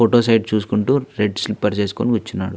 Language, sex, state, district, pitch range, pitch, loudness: Telugu, male, Andhra Pradesh, Visakhapatnam, 105-120 Hz, 110 Hz, -19 LUFS